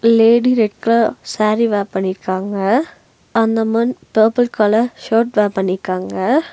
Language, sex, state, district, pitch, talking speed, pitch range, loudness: Tamil, female, Tamil Nadu, Nilgiris, 225 Hz, 120 wpm, 205-235 Hz, -16 LUFS